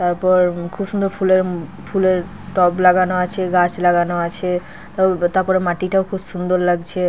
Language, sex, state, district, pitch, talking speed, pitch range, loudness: Bengali, female, West Bengal, Paschim Medinipur, 180 Hz, 125 wpm, 175-190 Hz, -18 LUFS